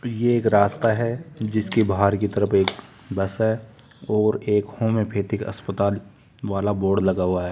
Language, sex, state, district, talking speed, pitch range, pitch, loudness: Hindi, male, Rajasthan, Jaipur, 160 wpm, 100-110 Hz, 105 Hz, -22 LUFS